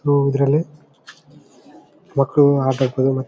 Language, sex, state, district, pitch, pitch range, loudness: Kannada, male, Karnataka, Bellary, 140 Hz, 135-145 Hz, -18 LUFS